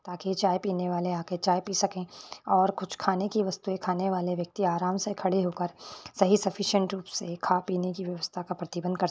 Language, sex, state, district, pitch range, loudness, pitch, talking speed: Hindi, female, Rajasthan, Churu, 180-195 Hz, -29 LUFS, 185 Hz, 225 wpm